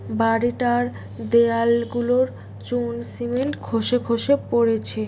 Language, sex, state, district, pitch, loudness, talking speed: Bengali, female, West Bengal, Paschim Medinipur, 230 Hz, -22 LUFS, 85 wpm